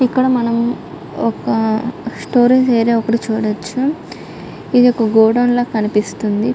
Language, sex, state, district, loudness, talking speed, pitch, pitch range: Telugu, female, Andhra Pradesh, Chittoor, -15 LUFS, 110 wpm, 235 Hz, 220-245 Hz